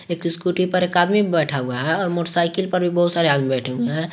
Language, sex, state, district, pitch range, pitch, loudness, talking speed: Hindi, male, Jharkhand, Garhwa, 155-180 Hz, 170 Hz, -20 LUFS, 245 wpm